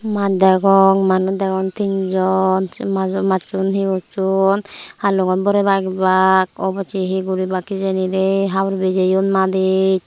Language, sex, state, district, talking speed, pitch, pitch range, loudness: Chakma, female, Tripura, Unakoti, 130 wpm, 190 Hz, 190-195 Hz, -17 LUFS